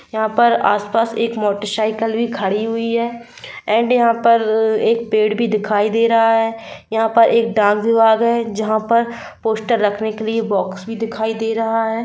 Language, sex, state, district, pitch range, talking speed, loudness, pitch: Hindi, female, Jharkhand, Jamtara, 215-230 Hz, 190 wpm, -17 LUFS, 225 Hz